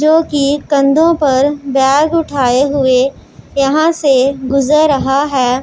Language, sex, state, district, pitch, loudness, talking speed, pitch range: Hindi, female, Punjab, Pathankot, 280 Hz, -12 LUFS, 115 wpm, 270-300 Hz